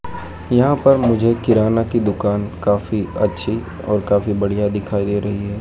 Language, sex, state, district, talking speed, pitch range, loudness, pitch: Hindi, male, Madhya Pradesh, Dhar, 160 wpm, 100-115 Hz, -18 LUFS, 105 Hz